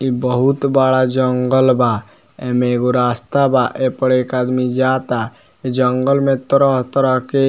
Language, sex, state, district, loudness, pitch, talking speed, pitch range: Bhojpuri, male, Bihar, Muzaffarpur, -16 LUFS, 130 Hz, 160 wpm, 125-130 Hz